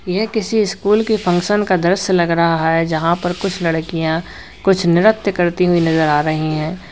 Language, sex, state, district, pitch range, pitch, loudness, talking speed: Hindi, male, Uttar Pradesh, Lalitpur, 165-195 Hz, 175 Hz, -16 LUFS, 190 wpm